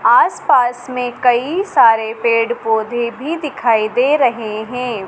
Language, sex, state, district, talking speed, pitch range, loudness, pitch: Hindi, female, Madhya Pradesh, Dhar, 140 wpm, 225-250 Hz, -15 LUFS, 240 Hz